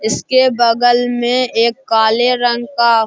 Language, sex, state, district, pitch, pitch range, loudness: Hindi, male, Bihar, Araria, 240 Hz, 230-245 Hz, -13 LUFS